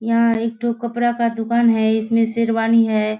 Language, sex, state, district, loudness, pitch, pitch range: Hindi, female, Bihar, Kishanganj, -18 LUFS, 230 Hz, 225-235 Hz